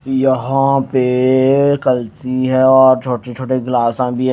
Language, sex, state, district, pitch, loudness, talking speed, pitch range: Hindi, male, Odisha, Nuapada, 130 Hz, -14 LUFS, 140 wpm, 125-130 Hz